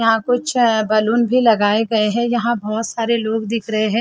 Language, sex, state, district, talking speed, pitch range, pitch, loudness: Hindi, female, Chhattisgarh, Rajnandgaon, 210 wpm, 215-235 Hz, 225 Hz, -17 LUFS